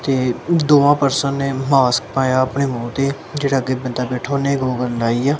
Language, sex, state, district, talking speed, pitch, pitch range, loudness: Punjabi, male, Punjab, Kapurthala, 200 wpm, 135 Hz, 125-140 Hz, -18 LUFS